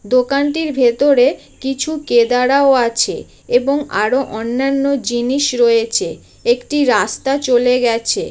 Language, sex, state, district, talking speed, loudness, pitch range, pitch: Bengali, female, West Bengal, Jalpaiguri, 130 wpm, -15 LUFS, 240-280 Hz, 260 Hz